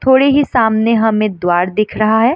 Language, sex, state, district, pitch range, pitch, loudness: Hindi, female, Bihar, Madhepura, 215-245 Hz, 220 Hz, -13 LUFS